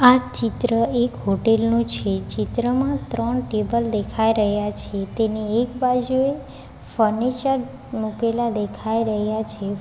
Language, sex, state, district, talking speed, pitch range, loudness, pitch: Gujarati, female, Gujarat, Valsad, 120 wpm, 210-245 Hz, -22 LUFS, 230 Hz